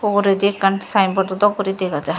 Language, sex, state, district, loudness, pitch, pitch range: Chakma, female, Tripura, Dhalai, -18 LUFS, 195 Hz, 190-205 Hz